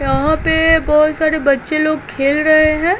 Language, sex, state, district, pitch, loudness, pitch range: Hindi, female, Bihar, Patna, 310 Hz, -14 LUFS, 295-315 Hz